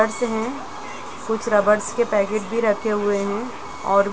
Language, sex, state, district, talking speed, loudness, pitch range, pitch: Hindi, female, Uttar Pradesh, Jalaun, 175 wpm, -22 LUFS, 205-225 Hz, 215 Hz